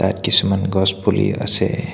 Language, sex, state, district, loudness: Assamese, male, Assam, Hailakandi, -16 LUFS